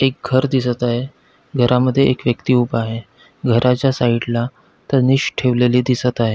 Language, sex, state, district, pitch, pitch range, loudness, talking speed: Marathi, male, Maharashtra, Pune, 125 Hz, 120-130 Hz, -17 LUFS, 140 wpm